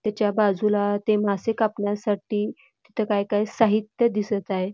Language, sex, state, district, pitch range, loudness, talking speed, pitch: Marathi, female, Karnataka, Belgaum, 205-215 Hz, -24 LUFS, 140 wpm, 210 Hz